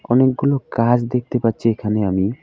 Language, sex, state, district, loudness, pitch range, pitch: Bengali, male, West Bengal, Alipurduar, -18 LUFS, 115-125 Hz, 120 Hz